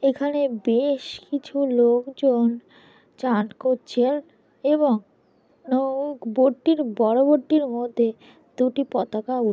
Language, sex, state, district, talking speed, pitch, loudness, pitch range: Bengali, female, West Bengal, Kolkata, 100 wpm, 260 Hz, -22 LUFS, 240-280 Hz